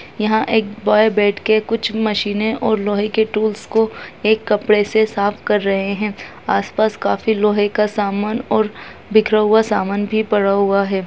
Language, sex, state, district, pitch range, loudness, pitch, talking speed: Hindi, female, Uttarakhand, Tehri Garhwal, 205-220 Hz, -17 LUFS, 210 Hz, 175 wpm